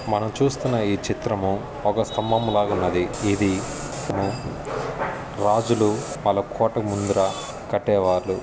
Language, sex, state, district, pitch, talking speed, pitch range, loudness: Telugu, male, Telangana, Karimnagar, 105 Hz, 95 wpm, 100-115 Hz, -23 LUFS